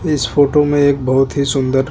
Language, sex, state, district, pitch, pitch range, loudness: Hindi, male, Chhattisgarh, Bastar, 140 Hz, 135-145 Hz, -14 LUFS